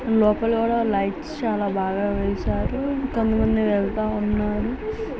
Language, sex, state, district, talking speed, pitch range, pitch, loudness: Telugu, female, Andhra Pradesh, Visakhapatnam, 105 wpm, 205-230 Hz, 215 Hz, -23 LUFS